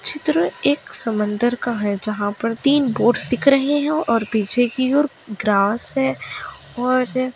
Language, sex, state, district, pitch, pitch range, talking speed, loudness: Hindi, female, Chhattisgarh, Kabirdham, 245 Hz, 220-275 Hz, 155 wpm, -19 LUFS